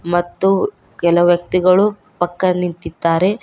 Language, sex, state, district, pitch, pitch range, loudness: Kannada, female, Karnataka, Koppal, 175 Hz, 175-190 Hz, -16 LUFS